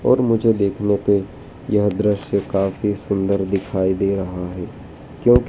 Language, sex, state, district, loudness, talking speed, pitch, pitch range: Hindi, male, Madhya Pradesh, Dhar, -20 LUFS, 140 wpm, 100 Hz, 95-105 Hz